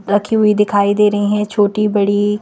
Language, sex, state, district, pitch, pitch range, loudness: Hindi, female, Madhya Pradesh, Bhopal, 210 Hz, 205-210 Hz, -14 LUFS